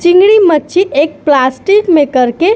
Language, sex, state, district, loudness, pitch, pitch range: Hindi, female, Uttar Pradesh, Etah, -10 LUFS, 325 Hz, 285-375 Hz